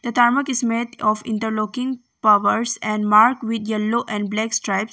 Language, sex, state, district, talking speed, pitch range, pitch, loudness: English, female, Arunachal Pradesh, Longding, 170 wpm, 215-240 Hz, 220 Hz, -20 LUFS